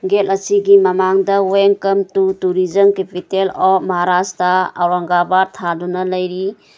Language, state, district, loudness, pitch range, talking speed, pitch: Manipuri, Manipur, Imphal West, -15 LUFS, 180-195 Hz, 105 wpm, 190 Hz